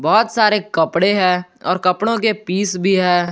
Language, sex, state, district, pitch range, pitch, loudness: Hindi, male, Jharkhand, Garhwa, 180-210 Hz, 190 Hz, -16 LUFS